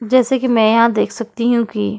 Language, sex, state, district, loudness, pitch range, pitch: Hindi, female, Goa, North and South Goa, -15 LUFS, 220-240 Hz, 230 Hz